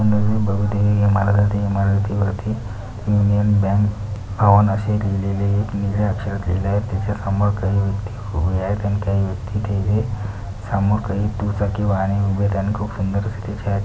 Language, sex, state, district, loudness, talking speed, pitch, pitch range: Marathi, male, Maharashtra, Pune, -20 LUFS, 145 wpm, 100 Hz, 100-105 Hz